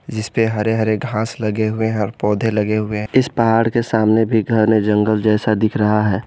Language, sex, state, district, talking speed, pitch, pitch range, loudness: Hindi, male, Jharkhand, Garhwa, 230 wpm, 110 Hz, 105-115 Hz, -17 LUFS